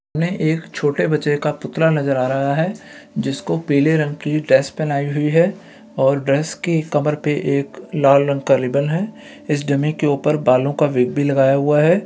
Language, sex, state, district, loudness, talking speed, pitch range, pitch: Hindi, male, Bihar, Kishanganj, -18 LUFS, 200 wpm, 140-155 Hz, 150 Hz